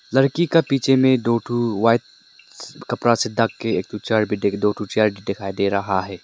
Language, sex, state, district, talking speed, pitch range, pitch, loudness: Hindi, male, Arunachal Pradesh, Lower Dibang Valley, 220 wpm, 100-120 Hz, 115 Hz, -20 LUFS